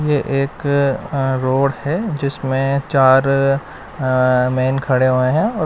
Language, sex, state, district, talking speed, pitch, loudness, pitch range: Hindi, male, Bihar, West Champaran, 125 wpm, 135 Hz, -17 LUFS, 130-140 Hz